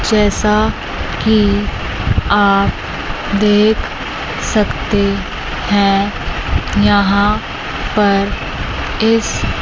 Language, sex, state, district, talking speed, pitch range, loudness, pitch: Hindi, male, Chandigarh, Chandigarh, 55 wpm, 200-210 Hz, -15 LUFS, 205 Hz